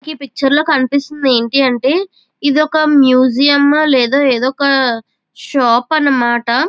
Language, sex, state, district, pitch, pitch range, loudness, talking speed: Telugu, female, Andhra Pradesh, Chittoor, 275 Hz, 255-295 Hz, -12 LUFS, 100 wpm